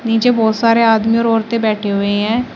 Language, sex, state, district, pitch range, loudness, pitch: Hindi, female, Uttar Pradesh, Shamli, 215-230 Hz, -14 LUFS, 225 Hz